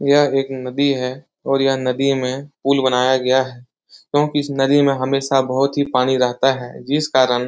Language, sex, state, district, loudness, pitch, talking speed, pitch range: Hindi, male, Uttar Pradesh, Etah, -18 LUFS, 135 Hz, 200 wpm, 130-140 Hz